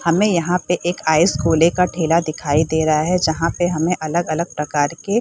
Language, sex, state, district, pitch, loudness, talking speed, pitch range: Hindi, female, Bihar, Saharsa, 165 Hz, -18 LUFS, 205 wpm, 155-175 Hz